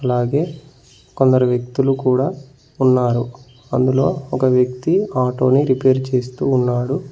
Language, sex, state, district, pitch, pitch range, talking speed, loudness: Telugu, male, Telangana, Mahabubabad, 130 Hz, 125-135 Hz, 110 wpm, -17 LUFS